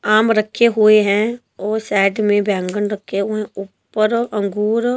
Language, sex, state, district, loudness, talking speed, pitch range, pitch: Hindi, female, Himachal Pradesh, Shimla, -17 LUFS, 155 wpm, 200-220 Hz, 215 Hz